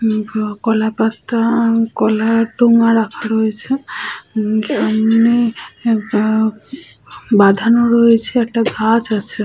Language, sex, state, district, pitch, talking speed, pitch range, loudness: Bengali, female, West Bengal, Purulia, 225 Hz, 95 wpm, 220-230 Hz, -15 LUFS